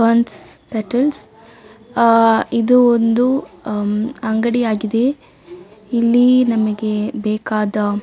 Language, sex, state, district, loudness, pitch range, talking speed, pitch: Kannada, female, Karnataka, Dakshina Kannada, -16 LUFS, 215-240 Hz, 90 wpm, 225 Hz